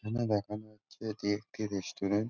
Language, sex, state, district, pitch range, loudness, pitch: Bengali, male, West Bengal, Jhargram, 105-110 Hz, -35 LUFS, 105 Hz